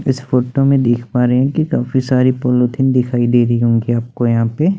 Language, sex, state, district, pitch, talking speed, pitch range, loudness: Hindi, male, Chandigarh, Chandigarh, 125 Hz, 215 wpm, 120-130 Hz, -15 LUFS